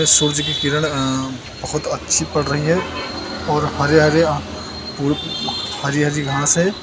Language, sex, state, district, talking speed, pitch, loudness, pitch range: Hindi, male, Uttar Pradesh, Lucknow, 140 wpm, 150 Hz, -18 LUFS, 140-155 Hz